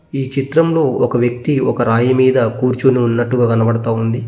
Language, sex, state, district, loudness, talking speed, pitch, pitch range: Telugu, male, Telangana, Mahabubabad, -15 LUFS, 155 wpm, 125 Hz, 115-130 Hz